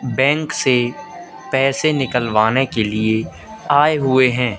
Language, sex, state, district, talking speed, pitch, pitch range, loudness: Hindi, male, Madhya Pradesh, Katni, 115 wpm, 130 Hz, 120-145 Hz, -17 LUFS